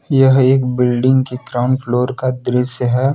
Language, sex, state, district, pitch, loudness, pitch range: Hindi, male, Jharkhand, Deoghar, 125 Hz, -15 LUFS, 125-130 Hz